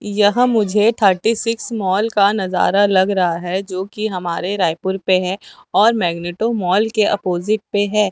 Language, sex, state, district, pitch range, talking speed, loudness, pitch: Hindi, female, Chhattisgarh, Raipur, 185-215 Hz, 170 wpm, -17 LUFS, 200 Hz